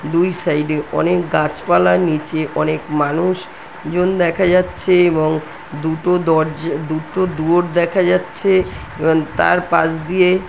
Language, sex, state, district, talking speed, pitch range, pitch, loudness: Bengali, female, West Bengal, North 24 Parganas, 120 wpm, 155-180 Hz, 170 Hz, -17 LUFS